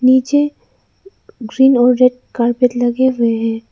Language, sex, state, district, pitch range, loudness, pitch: Hindi, female, Arunachal Pradesh, Lower Dibang Valley, 235-260 Hz, -14 LUFS, 250 Hz